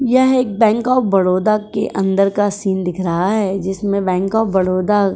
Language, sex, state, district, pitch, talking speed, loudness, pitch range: Hindi, female, Uttar Pradesh, Jyotiba Phule Nagar, 200 Hz, 200 wpm, -16 LUFS, 190-215 Hz